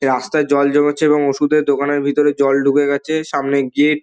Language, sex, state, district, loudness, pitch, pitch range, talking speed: Bengali, male, West Bengal, Dakshin Dinajpur, -16 LUFS, 145 Hz, 140-150 Hz, 195 wpm